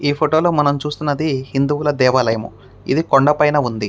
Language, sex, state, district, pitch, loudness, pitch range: Telugu, male, Andhra Pradesh, Krishna, 145 Hz, -17 LUFS, 130-150 Hz